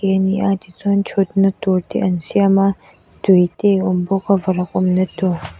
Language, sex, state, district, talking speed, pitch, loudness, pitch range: Mizo, female, Mizoram, Aizawl, 205 wpm, 190 Hz, -17 LUFS, 185-195 Hz